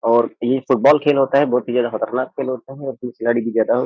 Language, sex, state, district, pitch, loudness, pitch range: Hindi, male, Uttar Pradesh, Jyotiba Phule Nagar, 125 Hz, -18 LUFS, 120-135 Hz